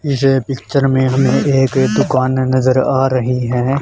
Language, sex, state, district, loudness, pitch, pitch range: Hindi, male, Haryana, Charkhi Dadri, -14 LUFS, 130 Hz, 130-135 Hz